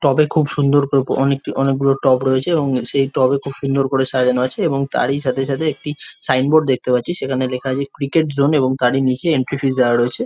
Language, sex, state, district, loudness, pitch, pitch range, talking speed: Bengali, male, West Bengal, Jhargram, -17 LUFS, 135 Hz, 130-140 Hz, 240 wpm